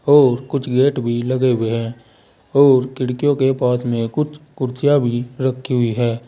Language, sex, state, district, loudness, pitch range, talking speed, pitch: Hindi, male, Uttar Pradesh, Saharanpur, -18 LUFS, 120-135 Hz, 170 wpm, 125 Hz